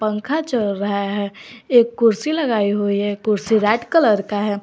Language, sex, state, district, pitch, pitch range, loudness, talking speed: Hindi, female, Jharkhand, Garhwa, 215 Hz, 205-235 Hz, -18 LUFS, 180 wpm